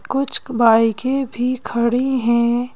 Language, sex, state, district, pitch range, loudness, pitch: Hindi, female, Madhya Pradesh, Bhopal, 235-260 Hz, -17 LUFS, 245 Hz